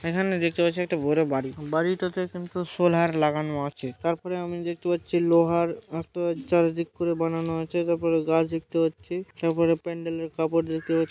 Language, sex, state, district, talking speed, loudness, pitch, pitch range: Bengali, male, West Bengal, Malda, 160 wpm, -26 LUFS, 165 Hz, 160-175 Hz